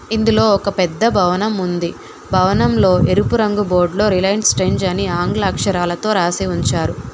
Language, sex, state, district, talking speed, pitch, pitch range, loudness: Telugu, female, Telangana, Hyderabad, 135 wpm, 200 Hz, 180-215 Hz, -16 LUFS